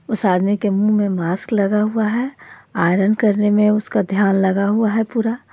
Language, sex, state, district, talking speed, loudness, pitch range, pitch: Hindi, female, Jharkhand, Ranchi, 195 wpm, -17 LUFS, 195-220 Hz, 210 Hz